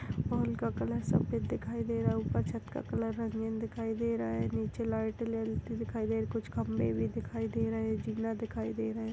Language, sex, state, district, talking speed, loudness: Hindi, female, Chhattisgarh, Balrampur, 230 wpm, -34 LUFS